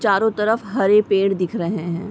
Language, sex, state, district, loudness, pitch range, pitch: Hindi, female, Uttar Pradesh, Varanasi, -19 LUFS, 195-215 Hz, 205 Hz